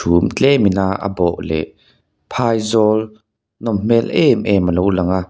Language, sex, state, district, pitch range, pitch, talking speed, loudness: Mizo, male, Mizoram, Aizawl, 90-110 Hz, 100 Hz, 180 wpm, -16 LUFS